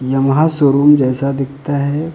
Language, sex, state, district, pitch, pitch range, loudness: Hindi, male, Uttar Pradesh, Lucknow, 140 Hz, 135-150 Hz, -14 LUFS